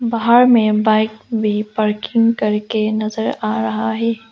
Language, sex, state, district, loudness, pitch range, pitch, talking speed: Hindi, female, Arunachal Pradesh, Lower Dibang Valley, -16 LUFS, 210-230 Hz, 215 Hz, 140 wpm